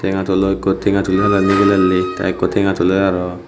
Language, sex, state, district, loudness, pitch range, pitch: Chakma, male, Tripura, Unakoti, -15 LUFS, 90-95 Hz, 95 Hz